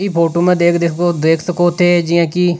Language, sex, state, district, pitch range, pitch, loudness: Rajasthani, male, Rajasthan, Nagaur, 170-175 Hz, 175 Hz, -14 LUFS